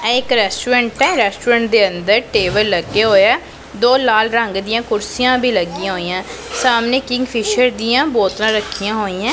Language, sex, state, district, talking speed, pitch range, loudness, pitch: Punjabi, female, Punjab, Pathankot, 165 wpm, 205-250 Hz, -15 LUFS, 225 Hz